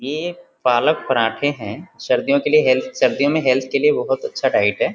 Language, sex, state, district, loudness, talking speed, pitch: Hindi, male, Bihar, Vaishali, -18 LUFS, 205 wpm, 175 Hz